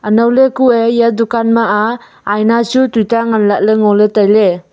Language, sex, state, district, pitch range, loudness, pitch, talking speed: Wancho, female, Arunachal Pradesh, Longding, 210-235 Hz, -11 LUFS, 225 Hz, 205 wpm